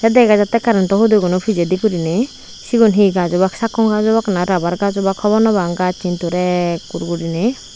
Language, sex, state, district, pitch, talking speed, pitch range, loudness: Chakma, female, Tripura, Unakoti, 200 Hz, 195 wpm, 180-220 Hz, -15 LUFS